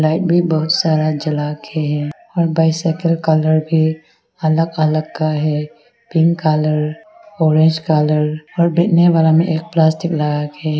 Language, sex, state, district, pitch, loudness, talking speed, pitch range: Hindi, female, Arunachal Pradesh, Longding, 160 Hz, -16 LUFS, 150 wpm, 155-165 Hz